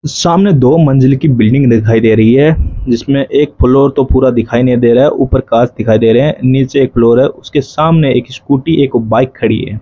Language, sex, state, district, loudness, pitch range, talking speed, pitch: Hindi, male, Rajasthan, Bikaner, -10 LUFS, 115-140 Hz, 225 wpm, 130 Hz